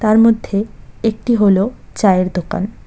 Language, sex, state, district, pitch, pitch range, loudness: Bengali, female, West Bengal, Cooch Behar, 210 Hz, 195-225 Hz, -16 LUFS